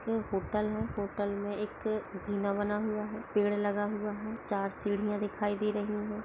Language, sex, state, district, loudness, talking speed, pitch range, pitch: Hindi, female, Maharashtra, Aurangabad, -33 LUFS, 180 wpm, 205-210 Hz, 210 Hz